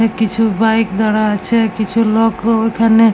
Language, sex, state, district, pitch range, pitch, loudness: Bengali, female, West Bengal, Jalpaiguri, 215-225 Hz, 225 Hz, -14 LUFS